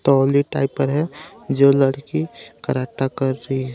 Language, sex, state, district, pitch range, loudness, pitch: Hindi, female, Jharkhand, Garhwa, 130-140 Hz, -20 LUFS, 135 Hz